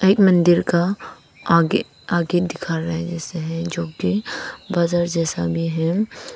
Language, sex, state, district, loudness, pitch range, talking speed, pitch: Hindi, female, Arunachal Pradesh, Papum Pare, -20 LUFS, 165-190 Hz, 140 wpm, 170 Hz